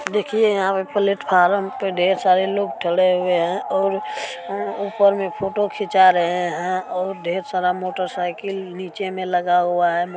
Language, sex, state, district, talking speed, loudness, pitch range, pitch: Maithili, female, Bihar, Supaul, 165 wpm, -20 LUFS, 180-200 Hz, 185 Hz